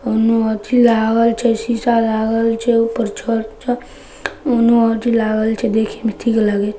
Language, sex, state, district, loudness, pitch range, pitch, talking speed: Maithili, female, Bihar, Samastipur, -16 LUFS, 220-235 Hz, 230 Hz, 160 wpm